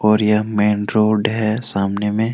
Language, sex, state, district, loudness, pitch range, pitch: Hindi, male, Jharkhand, Deoghar, -17 LUFS, 105-110 Hz, 105 Hz